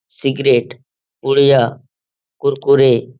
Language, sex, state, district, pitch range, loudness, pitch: Hindi, male, Bihar, Supaul, 130-140 Hz, -14 LUFS, 135 Hz